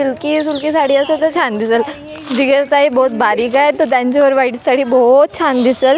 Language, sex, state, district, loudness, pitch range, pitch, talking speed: Marathi, female, Maharashtra, Gondia, -13 LUFS, 260-300 Hz, 275 Hz, 230 wpm